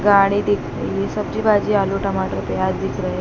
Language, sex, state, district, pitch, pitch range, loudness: Hindi, female, Madhya Pradesh, Dhar, 200 Hz, 170-205 Hz, -19 LUFS